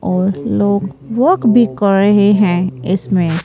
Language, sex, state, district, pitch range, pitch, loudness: Hindi, female, Rajasthan, Jaipur, 185-205 Hz, 200 Hz, -14 LUFS